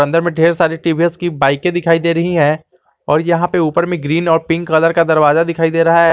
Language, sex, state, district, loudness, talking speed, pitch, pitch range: Hindi, male, Jharkhand, Garhwa, -14 LUFS, 245 wpm, 165 Hz, 160-170 Hz